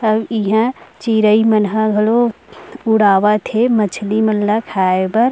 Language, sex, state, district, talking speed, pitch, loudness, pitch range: Chhattisgarhi, female, Chhattisgarh, Rajnandgaon, 145 wpm, 215 Hz, -15 LUFS, 210-225 Hz